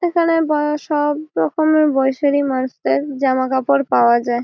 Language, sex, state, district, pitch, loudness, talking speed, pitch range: Bengali, female, West Bengal, Malda, 280 Hz, -17 LUFS, 135 wpm, 260-300 Hz